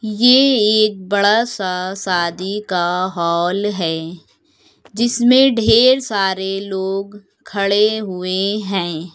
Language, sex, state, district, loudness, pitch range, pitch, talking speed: Hindi, female, Uttar Pradesh, Lucknow, -16 LUFS, 185-215 Hz, 200 Hz, 100 wpm